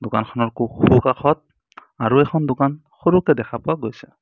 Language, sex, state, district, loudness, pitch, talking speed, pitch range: Assamese, male, Assam, Sonitpur, -19 LUFS, 135 Hz, 140 wpm, 120-155 Hz